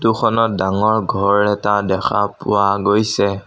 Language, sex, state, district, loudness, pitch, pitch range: Assamese, male, Assam, Sonitpur, -16 LUFS, 100 Hz, 100-110 Hz